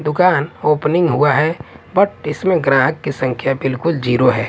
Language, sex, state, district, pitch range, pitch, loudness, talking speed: Hindi, male, Punjab, Kapurthala, 135-170 Hz, 150 Hz, -16 LUFS, 160 wpm